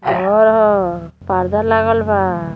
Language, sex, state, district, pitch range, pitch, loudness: Bhojpuri, female, Uttar Pradesh, Deoria, 180-220 Hz, 200 Hz, -14 LUFS